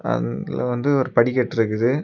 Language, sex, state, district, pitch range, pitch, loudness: Tamil, male, Tamil Nadu, Kanyakumari, 110-130 Hz, 120 Hz, -21 LUFS